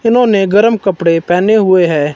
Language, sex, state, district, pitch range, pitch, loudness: Hindi, male, Himachal Pradesh, Shimla, 175-220 Hz, 195 Hz, -11 LUFS